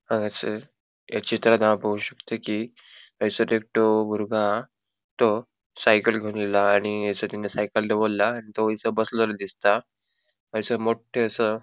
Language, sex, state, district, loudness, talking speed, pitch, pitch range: Konkani, male, Goa, North and South Goa, -24 LUFS, 155 wpm, 110 Hz, 105-115 Hz